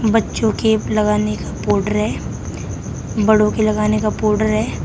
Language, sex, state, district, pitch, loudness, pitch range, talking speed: Hindi, female, Uttar Pradesh, Shamli, 215 Hz, -18 LUFS, 210-220 Hz, 150 wpm